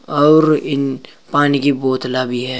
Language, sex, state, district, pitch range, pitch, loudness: Hindi, male, Uttar Pradesh, Saharanpur, 130-145 Hz, 140 Hz, -15 LUFS